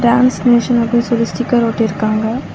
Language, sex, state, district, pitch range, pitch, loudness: Tamil, female, Tamil Nadu, Chennai, 225-240 Hz, 235 Hz, -14 LUFS